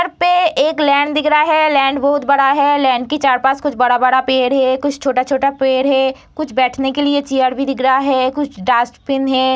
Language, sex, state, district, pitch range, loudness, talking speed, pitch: Hindi, female, Bihar, Saharsa, 260-285 Hz, -14 LUFS, 220 wpm, 270 Hz